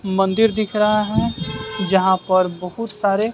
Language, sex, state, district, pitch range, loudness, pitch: Hindi, male, Bihar, West Champaran, 190-215 Hz, -19 LUFS, 200 Hz